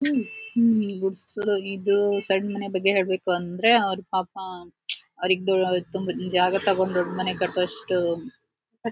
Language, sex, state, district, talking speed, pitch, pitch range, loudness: Kannada, female, Karnataka, Shimoga, 115 wpm, 195 Hz, 185-205 Hz, -24 LUFS